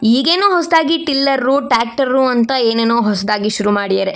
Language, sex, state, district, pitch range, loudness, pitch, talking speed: Kannada, female, Karnataka, Shimoga, 210-280 Hz, -14 LUFS, 245 Hz, 130 wpm